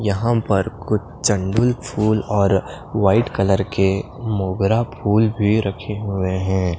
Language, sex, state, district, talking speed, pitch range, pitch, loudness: Hindi, male, Punjab, Pathankot, 130 wpm, 95-110 Hz, 105 Hz, -19 LUFS